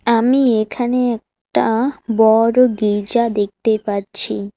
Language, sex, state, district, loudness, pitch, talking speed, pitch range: Bengali, female, West Bengal, Alipurduar, -16 LUFS, 225 Hz, 90 wpm, 210-245 Hz